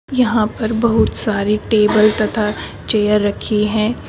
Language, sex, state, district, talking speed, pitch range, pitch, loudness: Hindi, female, Uttar Pradesh, Shamli, 130 wpm, 210-225 Hz, 215 Hz, -16 LUFS